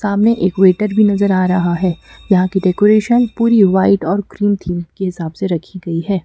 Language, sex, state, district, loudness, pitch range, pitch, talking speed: Hindi, female, Madhya Pradesh, Bhopal, -14 LUFS, 180-205 Hz, 190 Hz, 210 wpm